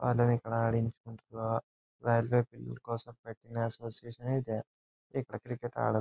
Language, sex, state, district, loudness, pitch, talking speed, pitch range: Telugu, male, Andhra Pradesh, Anantapur, -34 LUFS, 115 Hz, 130 wpm, 115-120 Hz